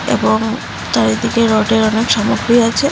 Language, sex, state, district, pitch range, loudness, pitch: Bengali, female, Assam, Hailakandi, 210-230 Hz, -14 LUFS, 220 Hz